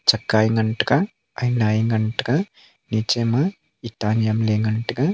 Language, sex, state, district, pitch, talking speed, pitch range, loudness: Wancho, male, Arunachal Pradesh, Longding, 115 Hz, 130 wpm, 110-135 Hz, -21 LUFS